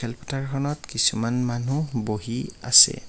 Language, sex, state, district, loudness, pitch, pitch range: Assamese, male, Assam, Kamrup Metropolitan, -22 LUFS, 125 Hz, 120-140 Hz